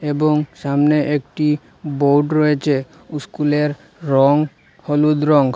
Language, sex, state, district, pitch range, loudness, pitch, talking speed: Bengali, male, Assam, Hailakandi, 145-150 Hz, -17 LUFS, 150 Hz, 95 wpm